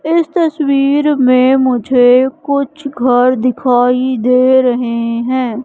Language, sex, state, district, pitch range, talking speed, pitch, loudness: Hindi, female, Madhya Pradesh, Katni, 245-280 Hz, 105 wpm, 255 Hz, -12 LUFS